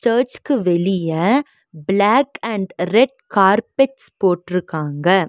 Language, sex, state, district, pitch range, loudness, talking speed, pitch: Tamil, female, Tamil Nadu, Nilgiris, 180-245 Hz, -18 LUFS, 80 wpm, 195 Hz